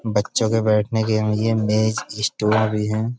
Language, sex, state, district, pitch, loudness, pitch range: Hindi, male, Uttar Pradesh, Budaun, 110 Hz, -20 LUFS, 105-110 Hz